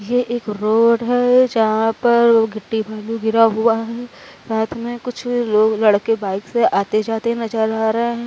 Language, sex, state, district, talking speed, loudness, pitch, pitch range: Hindi, female, Uttar Pradesh, Varanasi, 175 wpm, -17 LUFS, 225 Hz, 220-235 Hz